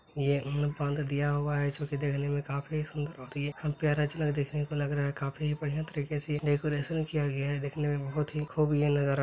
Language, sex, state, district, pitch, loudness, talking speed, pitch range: Hindi, male, Bihar, Purnia, 145 Hz, -31 LUFS, 215 wpm, 145-150 Hz